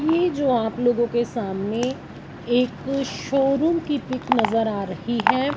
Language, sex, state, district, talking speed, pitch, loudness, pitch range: Hindi, female, Punjab, Fazilka, 150 wpm, 250 Hz, -22 LUFS, 230-275 Hz